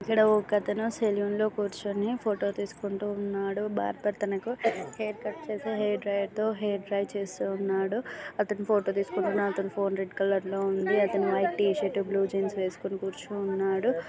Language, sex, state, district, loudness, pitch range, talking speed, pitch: Telugu, female, Andhra Pradesh, Srikakulam, -29 LUFS, 195-210 Hz, 165 wpm, 200 Hz